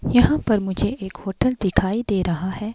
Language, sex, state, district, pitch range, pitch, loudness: Hindi, female, Himachal Pradesh, Shimla, 190-215 Hz, 195 Hz, -21 LUFS